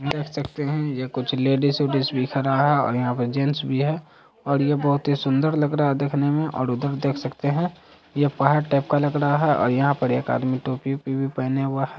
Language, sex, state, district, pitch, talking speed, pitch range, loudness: Hindi, male, Bihar, Saharsa, 140 Hz, 240 wpm, 135-145 Hz, -22 LUFS